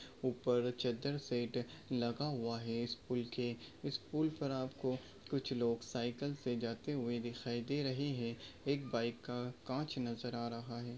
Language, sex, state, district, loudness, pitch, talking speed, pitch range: Hindi, male, Maharashtra, Nagpur, -40 LUFS, 125 Hz, 170 wpm, 120-135 Hz